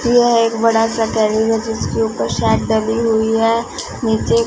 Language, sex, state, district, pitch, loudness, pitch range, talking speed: Hindi, female, Punjab, Fazilka, 225 Hz, -16 LUFS, 220-230 Hz, 150 wpm